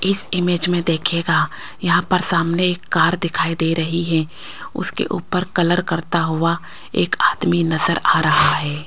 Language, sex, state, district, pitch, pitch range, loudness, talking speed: Hindi, female, Rajasthan, Jaipur, 170 Hz, 165-175 Hz, -18 LUFS, 160 wpm